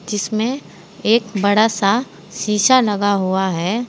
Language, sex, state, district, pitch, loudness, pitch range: Hindi, female, Uttar Pradesh, Saharanpur, 210 Hz, -17 LUFS, 200-230 Hz